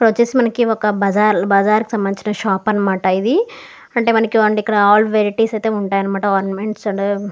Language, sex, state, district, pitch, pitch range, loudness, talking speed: Telugu, female, Andhra Pradesh, Guntur, 210 Hz, 200-225 Hz, -16 LUFS, 165 wpm